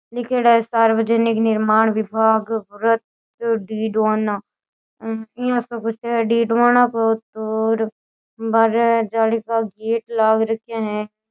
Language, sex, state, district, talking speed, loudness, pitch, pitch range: Rajasthani, female, Rajasthan, Nagaur, 115 wpm, -19 LUFS, 225 Hz, 220-230 Hz